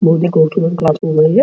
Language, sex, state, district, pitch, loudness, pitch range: Hindi, male, Bihar, Araria, 165 Hz, -13 LUFS, 160-175 Hz